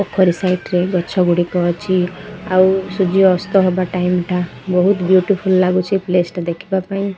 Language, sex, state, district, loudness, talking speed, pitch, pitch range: Odia, female, Odisha, Malkangiri, -16 LUFS, 160 wpm, 185 Hz, 180-190 Hz